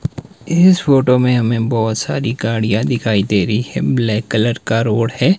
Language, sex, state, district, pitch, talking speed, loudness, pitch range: Hindi, male, Himachal Pradesh, Shimla, 115 Hz, 180 wpm, -15 LUFS, 110-135 Hz